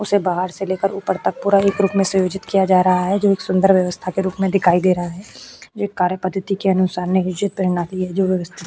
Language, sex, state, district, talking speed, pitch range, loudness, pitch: Hindi, female, Uttar Pradesh, Jyotiba Phule Nagar, 250 wpm, 185-195 Hz, -18 LUFS, 190 Hz